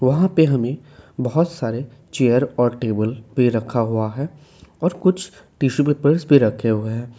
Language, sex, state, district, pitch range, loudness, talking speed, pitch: Hindi, male, Assam, Kamrup Metropolitan, 120-155 Hz, -19 LUFS, 165 wpm, 130 Hz